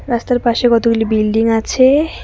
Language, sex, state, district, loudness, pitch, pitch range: Bengali, female, West Bengal, Cooch Behar, -14 LUFS, 235 Hz, 225-250 Hz